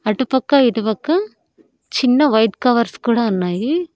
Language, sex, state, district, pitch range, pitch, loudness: Telugu, female, Andhra Pradesh, Annamaya, 220-285 Hz, 245 Hz, -17 LUFS